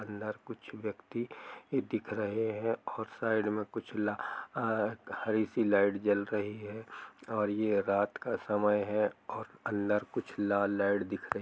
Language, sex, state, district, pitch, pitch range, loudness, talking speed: Hindi, male, Jharkhand, Jamtara, 105 Hz, 100-110 Hz, -33 LUFS, 170 wpm